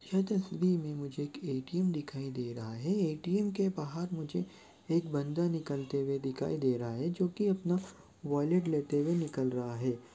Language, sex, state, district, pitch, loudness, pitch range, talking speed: Hindi, male, Chhattisgarh, Korba, 150 Hz, -34 LUFS, 135-175 Hz, 175 wpm